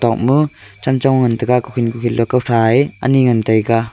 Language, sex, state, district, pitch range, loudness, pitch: Wancho, male, Arunachal Pradesh, Longding, 115-130 Hz, -15 LUFS, 120 Hz